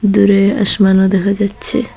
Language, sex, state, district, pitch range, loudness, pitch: Bengali, female, Assam, Hailakandi, 195-205 Hz, -12 LUFS, 200 Hz